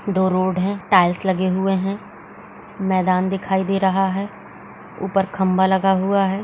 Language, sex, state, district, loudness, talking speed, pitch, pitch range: Hindi, female, Bihar, Saharsa, -19 LUFS, 185 wpm, 190 Hz, 185-195 Hz